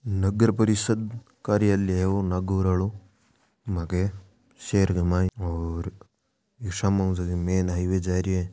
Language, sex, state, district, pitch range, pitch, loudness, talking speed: Marwari, male, Rajasthan, Nagaur, 90-105 Hz, 95 Hz, -25 LUFS, 140 wpm